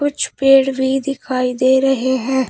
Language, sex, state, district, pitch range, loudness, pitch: Hindi, female, Uttar Pradesh, Shamli, 260-270 Hz, -16 LUFS, 265 Hz